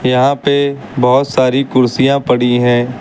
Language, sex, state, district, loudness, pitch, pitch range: Hindi, male, Uttar Pradesh, Lucknow, -13 LUFS, 130 Hz, 125-140 Hz